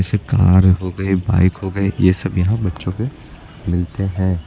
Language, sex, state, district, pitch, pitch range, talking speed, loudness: Hindi, male, Uttar Pradesh, Lucknow, 95 Hz, 90-100 Hz, 190 wpm, -17 LUFS